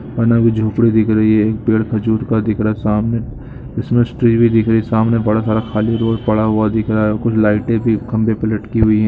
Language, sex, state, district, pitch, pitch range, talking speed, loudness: Hindi, male, Jharkhand, Sahebganj, 110 Hz, 110-115 Hz, 250 wpm, -15 LUFS